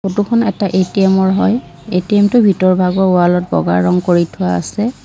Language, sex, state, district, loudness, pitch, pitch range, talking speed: Assamese, female, Assam, Kamrup Metropolitan, -13 LUFS, 190 Hz, 180-205 Hz, 180 wpm